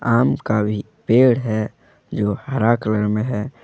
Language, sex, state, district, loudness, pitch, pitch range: Hindi, male, Jharkhand, Deoghar, -19 LUFS, 110 Hz, 105-125 Hz